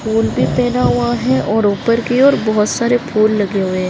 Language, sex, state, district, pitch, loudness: Hindi, female, Maharashtra, Nagpur, 210 Hz, -15 LUFS